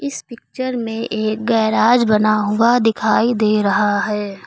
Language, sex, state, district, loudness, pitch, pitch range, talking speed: Hindi, female, Uttar Pradesh, Lucknow, -17 LUFS, 220 Hz, 210-235 Hz, 145 wpm